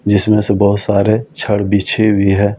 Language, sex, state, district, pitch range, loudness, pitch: Hindi, male, Delhi, New Delhi, 100-105 Hz, -13 LUFS, 100 Hz